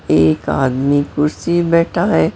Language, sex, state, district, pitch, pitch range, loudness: Hindi, female, Maharashtra, Mumbai Suburban, 150 Hz, 135-170 Hz, -15 LUFS